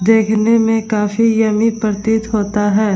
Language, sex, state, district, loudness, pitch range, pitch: Hindi, female, Bihar, Vaishali, -15 LUFS, 210-225 Hz, 220 Hz